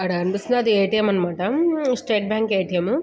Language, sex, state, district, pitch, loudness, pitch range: Telugu, female, Andhra Pradesh, Guntur, 210 Hz, -21 LUFS, 185-245 Hz